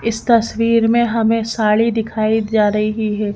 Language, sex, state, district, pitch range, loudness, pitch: Hindi, female, Madhya Pradesh, Bhopal, 215-230 Hz, -16 LUFS, 225 Hz